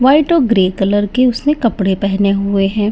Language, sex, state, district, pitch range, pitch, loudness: Hindi, female, Bihar, Katihar, 195-255 Hz, 205 Hz, -14 LUFS